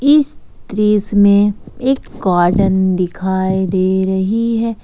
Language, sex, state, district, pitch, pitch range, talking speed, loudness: Hindi, female, Jharkhand, Ranchi, 195 Hz, 190-225 Hz, 110 wpm, -15 LUFS